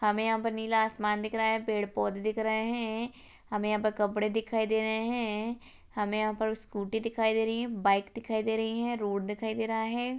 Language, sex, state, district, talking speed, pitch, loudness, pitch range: Hindi, female, Rajasthan, Churu, 230 wpm, 220 Hz, -31 LUFS, 215-225 Hz